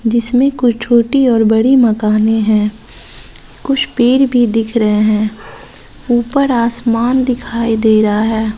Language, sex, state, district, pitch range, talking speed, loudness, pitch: Hindi, female, Bihar, West Champaran, 220-245 Hz, 135 wpm, -13 LUFS, 235 Hz